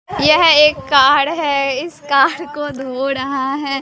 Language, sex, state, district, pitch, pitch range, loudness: Hindi, female, Bihar, Katihar, 280 Hz, 270-300 Hz, -14 LUFS